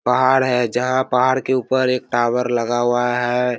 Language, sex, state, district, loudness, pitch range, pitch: Hindi, male, Bihar, Kishanganj, -18 LUFS, 120-130 Hz, 125 Hz